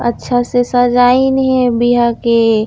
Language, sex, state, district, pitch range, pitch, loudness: Chhattisgarhi, female, Chhattisgarh, Raigarh, 235-245 Hz, 245 Hz, -12 LUFS